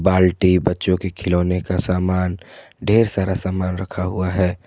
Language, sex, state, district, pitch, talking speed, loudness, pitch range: Hindi, male, Jharkhand, Garhwa, 90 Hz, 155 wpm, -19 LUFS, 90-95 Hz